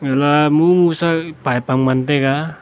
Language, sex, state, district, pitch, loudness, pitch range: Wancho, male, Arunachal Pradesh, Longding, 145 Hz, -15 LUFS, 135-165 Hz